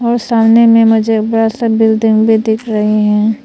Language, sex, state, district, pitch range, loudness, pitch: Hindi, female, Arunachal Pradesh, Papum Pare, 220-230 Hz, -11 LUFS, 225 Hz